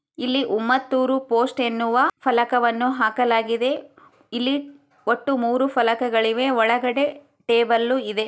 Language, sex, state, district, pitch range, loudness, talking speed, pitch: Kannada, female, Karnataka, Chamarajanagar, 235-265 Hz, -21 LUFS, 95 wpm, 250 Hz